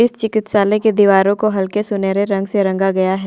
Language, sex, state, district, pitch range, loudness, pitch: Hindi, female, Jharkhand, Ranchi, 195-215 Hz, -15 LUFS, 200 Hz